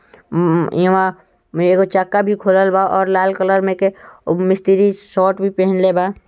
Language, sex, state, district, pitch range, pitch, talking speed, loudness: Bhojpuri, male, Bihar, East Champaran, 185-195 Hz, 190 Hz, 170 wpm, -15 LUFS